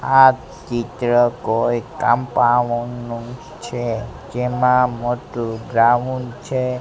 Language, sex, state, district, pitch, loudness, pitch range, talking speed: Gujarati, male, Gujarat, Gandhinagar, 120 Hz, -19 LUFS, 120-125 Hz, 90 wpm